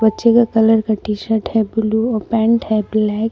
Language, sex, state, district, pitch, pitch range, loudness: Hindi, female, Jharkhand, Palamu, 220 Hz, 215-225 Hz, -16 LUFS